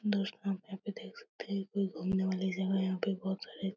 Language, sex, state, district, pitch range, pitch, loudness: Hindi, female, Uttar Pradesh, Etah, 190-205 Hz, 195 Hz, -35 LUFS